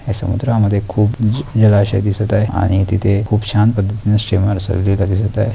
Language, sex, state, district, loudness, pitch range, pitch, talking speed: Marathi, male, Maharashtra, Pune, -15 LUFS, 100-110 Hz, 105 Hz, 150 wpm